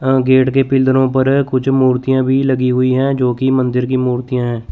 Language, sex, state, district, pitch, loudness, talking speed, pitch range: Hindi, male, Chandigarh, Chandigarh, 130 Hz, -14 LUFS, 215 wpm, 125-130 Hz